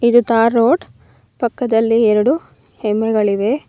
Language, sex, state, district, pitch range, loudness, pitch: Kannada, female, Karnataka, Bangalore, 210-235 Hz, -16 LUFS, 225 Hz